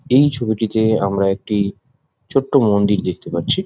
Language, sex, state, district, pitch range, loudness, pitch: Bengali, male, West Bengal, Jhargram, 100-135 Hz, -18 LUFS, 110 Hz